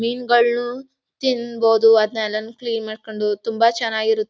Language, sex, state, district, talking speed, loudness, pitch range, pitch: Kannada, female, Karnataka, Mysore, 110 wpm, -19 LUFS, 220-240 Hz, 225 Hz